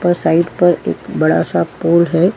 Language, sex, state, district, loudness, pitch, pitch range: Hindi, female, Uttar Pradesh, Varanasi, -15 LUFS, 170 Hz, 165-175 Hz